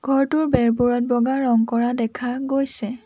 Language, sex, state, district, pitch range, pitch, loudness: Assamese, female, Assam, Sonitpur, 235-270 Hz, 245 Hz, -20 LUFS